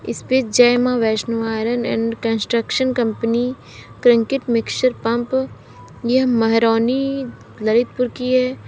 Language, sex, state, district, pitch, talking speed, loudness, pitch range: Hindi, female, Uttar Pradesh, Lalitpur, 240 Hz, 110 wpm, -18 LUFS, 230-255 Hz